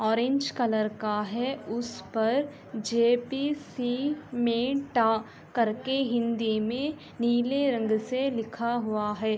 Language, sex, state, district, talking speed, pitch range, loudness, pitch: Hindi, female, Uttar Pradesh, Jalaun, 130 wpm, 220-265 Hz, -28 LUFS, 235 Hz